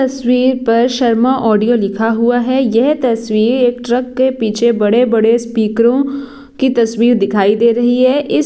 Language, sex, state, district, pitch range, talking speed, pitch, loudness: Hindi, female, Bihar, Jahanabad, 225-255 Hz, 170 wpm, 240 Hz, -13 LUFS